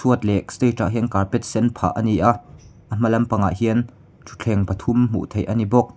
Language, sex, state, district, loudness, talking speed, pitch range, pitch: Mizo, male, Mizoram, Aizawl, -21 LUFS, 200 wpm, 105-120 Hz, 115 Hz